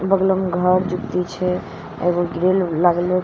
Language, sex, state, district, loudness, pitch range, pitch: Maithili, female, Bihar, Katihar, -19 LUFS, 175-185 Hz, 180 Hz